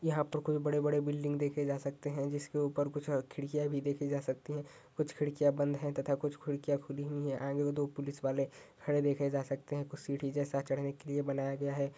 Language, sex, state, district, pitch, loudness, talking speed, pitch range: Hindi, male, Uttar Pradesh, Ghazipur, 145 Hz, -36 LUFS, 240 wpm, 140-145 Hz